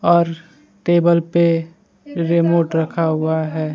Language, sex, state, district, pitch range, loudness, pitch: Hindi, male, Bihar, Kaimur, 160-170 Hz, -17 LUFS, 165 Hz